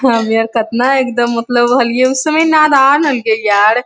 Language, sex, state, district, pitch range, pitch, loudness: Hindi, female, Bihar, Lakhisarai, 230-270 Hz, 245 Hz, -12 LUFS